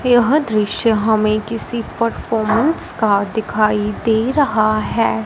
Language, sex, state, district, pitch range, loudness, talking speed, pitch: Hindi, female, Punjab, Fazilka, 215-230 Hz, -16 LUFS, 115 wpm, 220 Hz